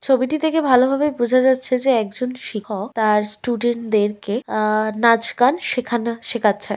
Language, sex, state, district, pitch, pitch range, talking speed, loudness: Bengali, female, West Bengal, Malda, 235 Hz, 215-255 Hz, 150 wpm, -19 LUFS